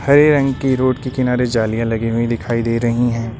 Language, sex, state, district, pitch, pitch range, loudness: Hindi, male, Uttar Pradesh, Lucknow, 120 Hz, 115-130 Hz, -17 LUFS